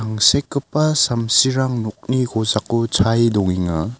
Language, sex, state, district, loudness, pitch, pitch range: Garo, male, Meghalaya, South Garo Hills, -18 LUFS, 115 Hz, 110-130 Hz